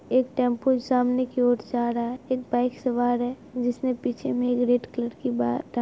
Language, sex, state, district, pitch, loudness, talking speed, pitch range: Hindi, female, Bihar, Araria, 245 Hz, -25 LUFS, 205 wpm, 245-255 Hz